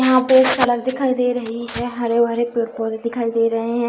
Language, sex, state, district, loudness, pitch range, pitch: Hindi, female, Bihar, Saharsa, -18 LUFS, 230-250 Hz, 235 Hz